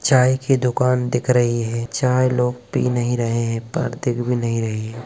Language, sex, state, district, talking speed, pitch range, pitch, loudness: Hindi, male, Bihar, East Champaran, 215 wpm, 115-125 Hz, 125 Hz, -20 LUFS